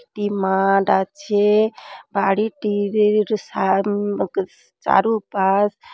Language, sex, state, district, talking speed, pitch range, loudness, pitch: Bengali, female, West Bengal, Dakshin Dinajpur, 100 wpm, 195-215 Hz, -19 LUFS, 205 Hz